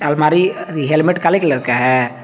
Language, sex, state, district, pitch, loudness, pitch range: Hindi, male, Jharkhand, Garhwa, 150 Hz, -15 LUFS, 130-175 Hz